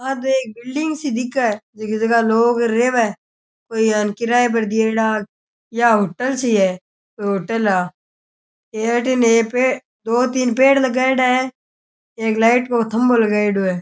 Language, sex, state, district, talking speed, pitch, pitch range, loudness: Rajasthani, male, Rajasthan, Churu, 160 wpm, 230 Hz, 220-250 Hz, -18 LUFS